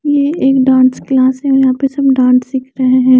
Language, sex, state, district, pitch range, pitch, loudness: Hindi, female, Chandigarh, Chandigarh, 255-270 Hz, 265 Hz, -11 LUFS